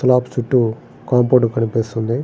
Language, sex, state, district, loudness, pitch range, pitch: Telugu, male, Andhra Pradesh, Srikakulam, -17 LUFS, 115-125 Hz, 125 Hz